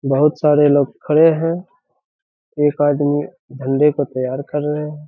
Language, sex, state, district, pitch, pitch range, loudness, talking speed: Hindi, male, Bihar, Saharsa, 150 Hz, 145-150 Hz, -17 LUFS, 155 wpm